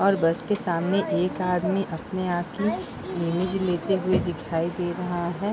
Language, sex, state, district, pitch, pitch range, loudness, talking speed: Hindi, female, Uttar Pradesh, Hamirpur, 180 Hz, 175-195 Hz, -26 LUFS, 175 wpm